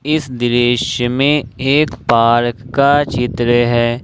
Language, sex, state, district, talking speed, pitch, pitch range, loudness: Hindi, male, Jharkhand, Ranchi, 120 wpm, 125 Hz, 120-140 Hz, -14 LUFS